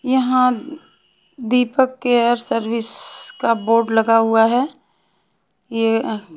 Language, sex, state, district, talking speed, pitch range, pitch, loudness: Hindi, female, Haryana, Charkhi Dadri, 105 wpm, 225-255 Hz, 235 Hz, -18 LUFS